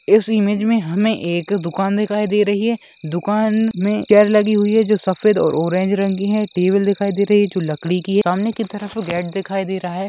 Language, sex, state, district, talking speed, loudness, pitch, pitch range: Hindi, female, Bihar, Bhagalpur, 240 wpm, -17 LUFS, 205 Hz, 190-210 Hz